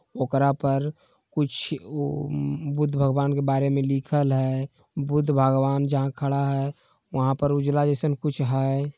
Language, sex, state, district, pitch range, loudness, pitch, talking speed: Magahi, male, Bihar, Jamui, 135-145 Hz, -24 LUFS, 140 Hz, 140 wpm